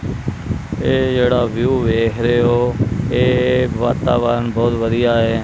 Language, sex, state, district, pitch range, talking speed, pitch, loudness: Punjabi, male, Punjab, Kapurthala, 115-125 Hz, 120 wpm, 120 Hz, -17 LUFS